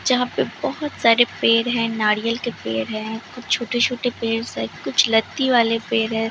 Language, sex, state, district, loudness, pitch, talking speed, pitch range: Hindi, female, Bihar, Katihar, -20 LUFS, 230 Hz, 190 wpm, 225-245 Hz